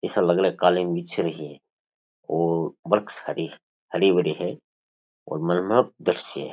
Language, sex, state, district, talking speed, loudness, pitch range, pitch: Rajasthani, male, Rajasthan, Churu, 145 wpm, -24 LUFS, 80-90 Hz, 85 Hz